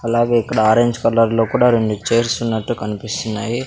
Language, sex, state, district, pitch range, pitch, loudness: Telugu, male, Andhra Pradesh, Sri Satya Sai, 110-120 Hz, 115 Hz, -17 LUFS